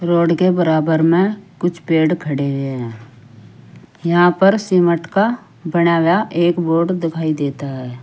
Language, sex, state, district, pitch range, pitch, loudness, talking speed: Hindi, female, Uttar Pradesh, Saharanpur, 140-175 Hz, 170 Hz, -16 LUFS, 135 wpm